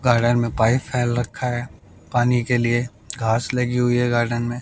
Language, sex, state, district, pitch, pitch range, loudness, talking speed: Hindi, male, Bihar, West Champaran, 120 Hz, 120-125 Hz, -21 LUFS, 195 wpm